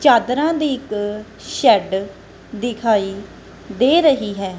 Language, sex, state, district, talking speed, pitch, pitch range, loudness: Punjabi, female, Punjab, Kapurthala, 105 wpm, 215 Hz, 200-260 Hz, -18 LUFS